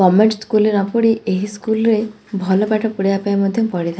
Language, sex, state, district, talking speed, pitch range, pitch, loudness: Odia, female, Odisha, Khordha, 225 wpm, 195-220 Hz, 210 Hz, -17 LUFS